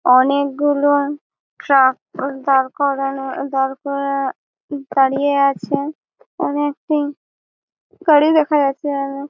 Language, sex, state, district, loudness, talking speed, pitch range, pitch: Bengali, female, West Bengal, Malda, -18 LUFS, 90 wpm, 275-290 Hz, 280 Hz